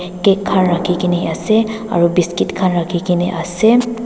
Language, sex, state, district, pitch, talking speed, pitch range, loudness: Nagamese, female, Nagaland, Dimapur, 180 Hz, 165 wpm, 175-205 Hz, -15 LUFS